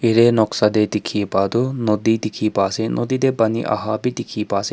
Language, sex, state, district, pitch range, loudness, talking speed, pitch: Nagamese, male, Nagaland, Kohima, 105-120 Hz, -19 LUFS, 205 wpm, 110 Hz